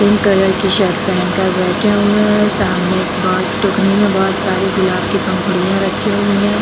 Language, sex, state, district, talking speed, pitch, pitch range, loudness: Hindi, female, Bihar, Jamui, 220 wpm, 195 Hz, 185-205 Hz, -14 LUFS